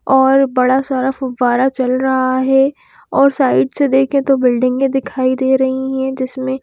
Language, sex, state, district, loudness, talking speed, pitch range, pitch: Hindi, female, Madhya Pradesh, Bhopal, -15 LUFS, 165 wpm, 260-270 Hz, 265 Hz